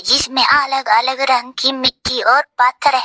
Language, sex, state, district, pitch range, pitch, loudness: Hindi, female, Assam, Hailakandi, 255-270 Hz, 260 Hz, -14 LUFS